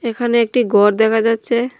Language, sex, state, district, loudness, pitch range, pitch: Bengali, female, Tripura, Dhalai, -15 LUFS, 220-240 Hz, 230 Hz